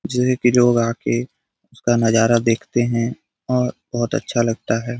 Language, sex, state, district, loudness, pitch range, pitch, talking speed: Hindi, male, Bihar, Jamui, -19 LUFS, 115-125 Hz, 120 Hz, 155 wpm